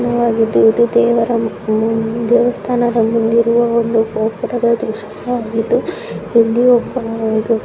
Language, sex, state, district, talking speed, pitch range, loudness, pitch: Kannada, female, Karnataka, Mysore, 100 wpm, 225-235 Hz, -15 LUFS, 230 Hz